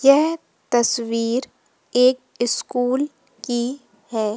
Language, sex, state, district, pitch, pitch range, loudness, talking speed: Hindi, female, Madhya Pradesh, Umaria, 245 Hz, 235-265 Hz, -21 LUFS, 80 wpm